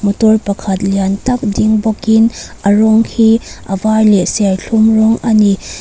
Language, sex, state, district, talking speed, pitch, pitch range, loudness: Mizo, female, Mizoram, Aizawl, 165 wpm, 215 Hz, 200-220 Hz, -12 LUFS